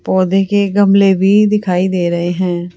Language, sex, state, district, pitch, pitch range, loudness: Hindi, female, Rajasthan, Jaipur, 190 Hz, 180-200 Hz, -13 LUFS